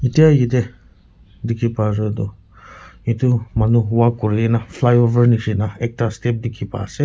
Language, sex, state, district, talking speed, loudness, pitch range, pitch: Nagamese, male, Nagaland, Kohima, 130 wpm, -18 LUFS, 105-120 Hz, 115 Hz